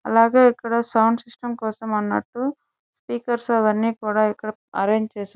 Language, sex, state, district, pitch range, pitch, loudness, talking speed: Telugu, male, Andhra Pradesh, Chittoor, 215-240 Hz, 225 Hz, -21 LUFS, 135 wpm